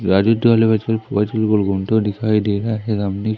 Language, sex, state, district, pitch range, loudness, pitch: Hindi, male, Madhya Pradesh, Umaria, 100-110 Hz, -17 LUFS, 110 Hz